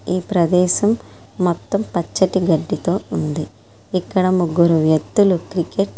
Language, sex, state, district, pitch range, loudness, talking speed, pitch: Telugu, female, Andhra Pradesh, Srikakulam, 175-190 Hz, -18 LUFS, 90 wpm, 180 Hz